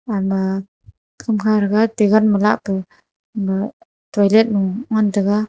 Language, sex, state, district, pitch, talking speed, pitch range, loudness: Wancho, female, Arunachal Pradesh, Longding, 210 Hz, 120 wpm, 195-215 Hz, -18 LUFS